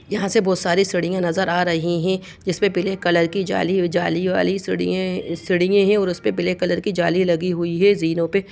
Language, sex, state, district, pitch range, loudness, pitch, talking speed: Hindi, female, Bihar, Jamui, 170-190 Hz, -20 LUFS, 180 Hz, 225 wpm